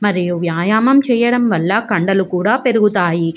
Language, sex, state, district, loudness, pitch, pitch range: Telugu, female, Andhra Pradesh, Visakhapatnam, -15 LUFS, 205 Hz, 175-230 Hz